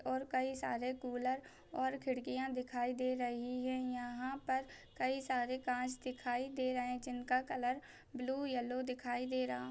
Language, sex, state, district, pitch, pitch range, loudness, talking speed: Hindi, female, Chhattisgarh, Raigarh, 255 Hz, 250-260 Hz, -40 LUFS, 155 wpm